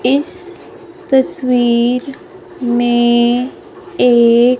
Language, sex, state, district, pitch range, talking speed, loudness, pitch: Hindi, female, Punjab, Fazilka, 240-370 Hz, 50 wpm, -13 LUFS, 255 Hz